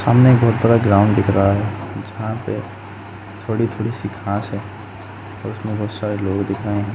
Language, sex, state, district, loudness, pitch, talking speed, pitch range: Hindi, male, Uttar Pradesh, Jalaun, -19 LUFS, 105 Hz, 205 wpm, 100-110 Hz